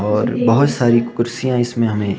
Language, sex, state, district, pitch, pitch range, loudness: Hindi, male, Himachal Pradesh, Shimla, 120 Hz, 115-125 Hz, -16 LUFS